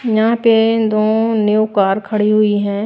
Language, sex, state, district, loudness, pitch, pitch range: Hindi, female, Chhattisgarh, Raipur, -14 LUFS, 215 Hz, 210-225 Hz